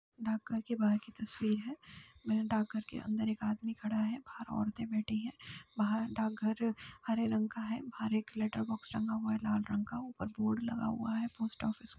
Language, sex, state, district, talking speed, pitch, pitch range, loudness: Hindi, female, Uttar Pradesh, Etah, 210 wpm, 220 Hz, 215-230 Hz, -37 LUFS